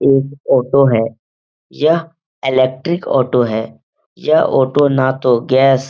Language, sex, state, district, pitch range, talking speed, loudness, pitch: Hindi, male, Bihar, Supaul, 120-145 Hz, 130 wpm, -14 LUFS, 130 Hz